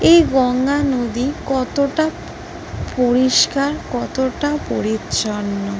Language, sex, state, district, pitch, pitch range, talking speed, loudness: Bengali, female, West Bengal, Kolkata, 260 Hz, 240-285 Hz, 70 wpm, -18 LUFS